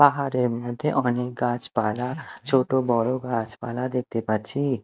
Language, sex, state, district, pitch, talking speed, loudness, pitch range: Bengali, male, Odisha, Malkangiri, 125 Hz, 110 wpm, -25 LUFS, 120-130 Hz